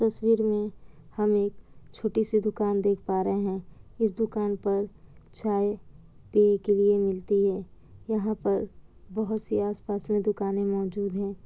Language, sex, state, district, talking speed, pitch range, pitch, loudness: Hindi, female, Bihar, Kishanganj, 145 wpm, 200-215 Hz, 205 Hz, -27 LUFS